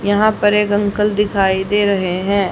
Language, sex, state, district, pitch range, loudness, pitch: Hindi, female, Haryana, Jhajjar, 195-210 Hz, -16 LUFS, 205 Hz